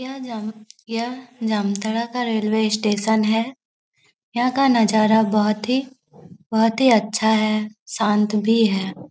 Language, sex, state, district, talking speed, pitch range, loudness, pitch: Hindi, male, Jharkhand, Jamtara, 130 wpm, 215-235 Hz, -20 LUFS, 220 Hz